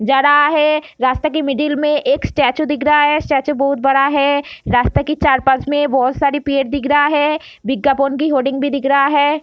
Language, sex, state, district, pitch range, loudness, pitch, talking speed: Hindi, female, Bihar, Darbhanga, 275-295 Hz, -15 LUFS, 285 Hz, 240 wpm